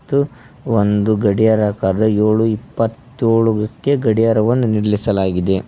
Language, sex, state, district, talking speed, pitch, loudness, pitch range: Kannada, male, Karnataka, Koppal, 95 wpm, 110 Hz, -16 LUFS, 105-115 Hz